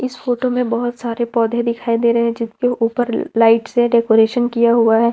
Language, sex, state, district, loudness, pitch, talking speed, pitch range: Hindi, female, Jharkhand, Ranchi, -16 LUFS, 235 Hz, 210 wpm, 230-245 Hz